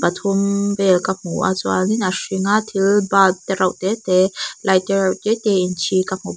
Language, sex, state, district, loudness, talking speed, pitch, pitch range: Mizo, female, Mizoram, Aizawl, -18 LUFS, 235 wpm, 190 Hz, 185-200 Hz